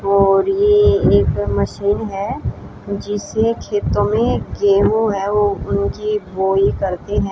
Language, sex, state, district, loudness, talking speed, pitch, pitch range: Hindi, female, Haryana, Charkhi Dadri, -17 LUFS, 125 wpm, 200 Hz, 190-220 Hz